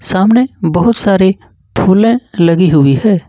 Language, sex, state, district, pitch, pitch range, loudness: Hindi, male, Jharkhand, Ranchi, 190 Hz, 175-220 Hz, -10 LUFS